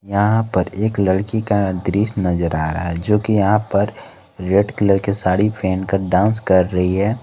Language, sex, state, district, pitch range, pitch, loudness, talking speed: Hindi, male, Jharkhand, Garhwa, 90-105 Hz, 100 Hz, -18 LUFS, 190 wpm